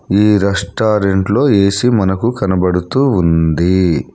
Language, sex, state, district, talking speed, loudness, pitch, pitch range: Telugu, male, Telangana, Hyderabad, 85 wpm, -13 LUFS, 100 Hz, 90-110 Hz